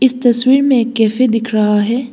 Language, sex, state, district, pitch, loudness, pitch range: Hindi, female, Assam, Hailakandi, 240 Hz, -13 LUFS, 225-255 Hz